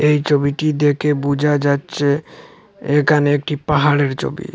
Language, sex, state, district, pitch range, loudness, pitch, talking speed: Bengali, male, Assam, Hailakandi, 145-150 Hz, -17 LUFS, 145 Hz, 130 wpm